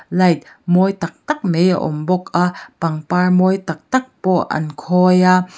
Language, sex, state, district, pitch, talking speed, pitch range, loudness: Mizo, female, Mizoram, Aizawl, 180 Hz, 185 wpm, 165-185 Hz, -17 LUFS